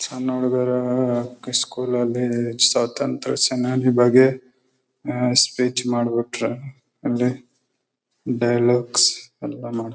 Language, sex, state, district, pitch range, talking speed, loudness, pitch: Kannada, male, Karnataka, Bellary, 120-130 Hz, 55 wpm, -20 LUFS, 125 Hz